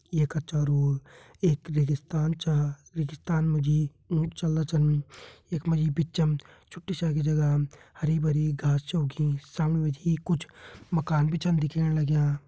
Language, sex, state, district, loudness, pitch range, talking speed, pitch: Hindi, male, Uttarakhand, Tehri Garhwal, -27 LUFS, 145-160 Hz, 160 wpm, 155 Hz